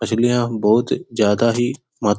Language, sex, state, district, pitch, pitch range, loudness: Hindi, male, Bihar, Supaul, 115 Hz, 105-120 Hz, -18 LUFS